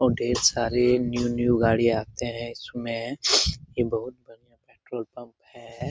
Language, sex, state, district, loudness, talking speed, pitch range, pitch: Hindi, male, Bihar, Lakhisarai, -24 LUFS, 150 wpm, 115-125 Hz, 120 Hz